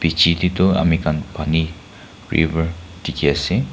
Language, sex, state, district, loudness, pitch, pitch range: Nagamese, male, Nagaland, Kohima, -19 LUFS, 80 Hz, 80-90 Hz